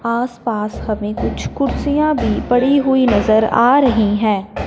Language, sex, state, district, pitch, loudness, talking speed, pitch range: Hindi, male, Punjab, Fazilka, 235 Hz, -16 LUFS, 155 wpm, 215-265 Hz